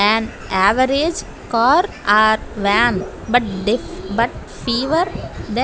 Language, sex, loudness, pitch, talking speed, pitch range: English, female, -17 LUFS, 225 Hz, 105 wpm, 205-260 Hz